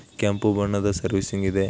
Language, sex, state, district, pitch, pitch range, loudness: Kannada, male, Karnataka, Belgaum, 100 Hz, 95-105 Hz, -24 LUFS